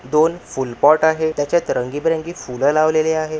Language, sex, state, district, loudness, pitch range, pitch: Marathi, male, Maharashtra, Nagpur, -18 LUFS, 145-160 Hz, 155 Hz